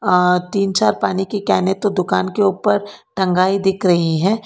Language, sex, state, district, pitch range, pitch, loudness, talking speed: Hindi, female, Karnataka, Bangalore, 180-205 Hz, 190 Hz, -17 LUFS, 190 wpm